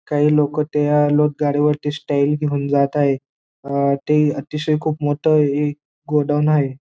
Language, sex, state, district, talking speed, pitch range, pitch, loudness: Marathi, male, Maharashtra, Dhule, 155 wpm, 140-150 Hz, 145 Hz, -18 LUFS